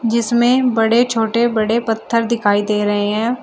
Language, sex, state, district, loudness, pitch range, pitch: Hindi, female, Uttar Pradesh, Shamli, -16 LUFS, 220-235 Hz, 230 Hz